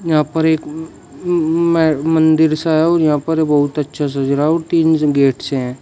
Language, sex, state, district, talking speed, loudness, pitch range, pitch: Hindi, male, Uttar Pradesh, Shamli, 195 wpm, -15 LUFS, 145-160 Hz, 155 Hz